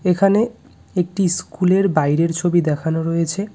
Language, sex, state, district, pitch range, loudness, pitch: Bengali, male, West Bengal, Cooch Behar, 165-195 Hz, -18 LUFS, 175 Hz